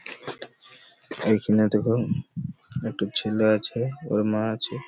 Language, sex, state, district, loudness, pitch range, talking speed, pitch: Bengali, male, West Bengal, Malda, -25 LUFS, 110-115 Hz, 110 wpm, 110 Hz